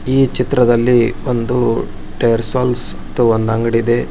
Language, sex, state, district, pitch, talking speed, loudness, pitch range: Kannada, male, Karnataka, Bijapur, 120 Hz, 130 wpm, -15 LUFS, 115-125 Hz